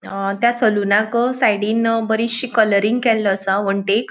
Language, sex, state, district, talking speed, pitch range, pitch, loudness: Konkani, female, Goa, North and South Goa, 130 wpm, 200-230 Hz, 220 Hz, -17 LUFS